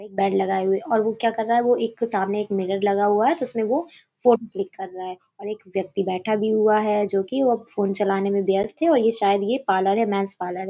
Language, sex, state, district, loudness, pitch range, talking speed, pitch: Hindi, female, Uttar Pradesh, Hamirpur, -22 LUFS, 195-225 Hz, 280 wpm, 205 Hz